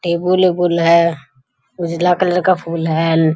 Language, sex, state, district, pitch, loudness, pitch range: Hindi, male, Bihar, Bhagalpur, 170 Hz, -15 LUFS, 160-180 Hz